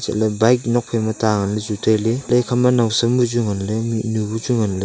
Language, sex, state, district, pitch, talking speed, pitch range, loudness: Wancho, male, Arunachal Pradesh, Longding, 110 Hz, 185 wpm, 110-120 Hz, -19 LUFS